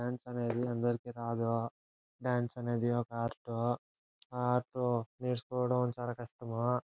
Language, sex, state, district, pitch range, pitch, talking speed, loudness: Telugu, male, Andhra Pradesh, Anantapur, 115-125 Hz, 120 Hz, 125 wpm, -36 LUFS